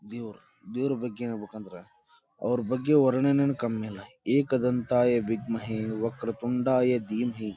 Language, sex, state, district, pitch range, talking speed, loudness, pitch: Kannada, male, Karnataka, Dharwad, 110-130 Hz, 120 wpm, -27 LUFS, 120 Hz